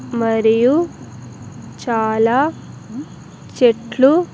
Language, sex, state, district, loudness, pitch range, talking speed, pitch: Telugu, female, Andhra Pradesh, Sri Satya Sai, -16 LUFS, 225-270 Hz, 55 wpm, 240 Hz